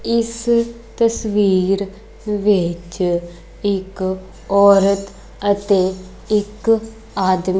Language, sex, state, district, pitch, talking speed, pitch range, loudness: Punjabi, female, Punjab, Kapurthala, 200 Hz, 65 wpm, 185-215 Hz, -18 LUFS